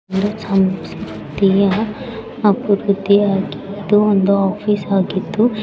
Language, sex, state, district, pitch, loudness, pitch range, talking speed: Kannada, female, Karnataka, Bellary, 200 Hz, -16 LUFS, 195-210 Hz, 65 wpm